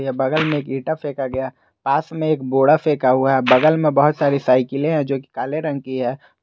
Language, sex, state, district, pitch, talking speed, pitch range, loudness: Hindi, male, Jharkhand, Garhwa, 140 Hz, 240 wpm, 130-150 Hz, -18 LUFS